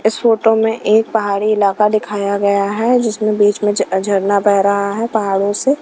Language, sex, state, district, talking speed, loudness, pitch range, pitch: Hindi, female, Himachal Pradesh, Shimla, 195 wpm, -15 LUFS, 200-220 Hz, 210 Hz